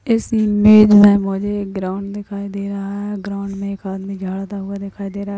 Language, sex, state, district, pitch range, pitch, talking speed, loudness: Hindi, male, Uttarakhand, Tehri Garhwal, 195-205 Hz, 200 Hz, 225 wpm, -17 LUFS